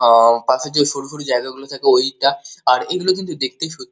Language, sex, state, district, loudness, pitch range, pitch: Bengali, male, West Bengal, Kolkata, -17 LUFS, 130-175 Hz, 140 Hz